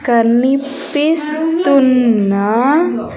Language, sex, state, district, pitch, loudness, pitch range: Telugu, female, Andhra Pradesh, Sri Satya Sai, 275 Hz, -13 LUFS, 235-300 Hz